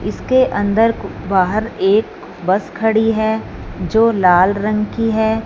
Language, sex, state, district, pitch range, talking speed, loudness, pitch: Hindi, female, Punjab, Fazilka, 195-225 Hz, 130 wpm, -16 LUFS, 215 Hz